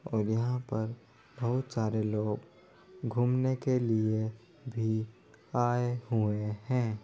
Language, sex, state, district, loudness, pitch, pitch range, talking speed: Hindi, female, Bihar, Darbhanga, -32 LUFS, 120 Hz, 110-125 Hz, 110 wpm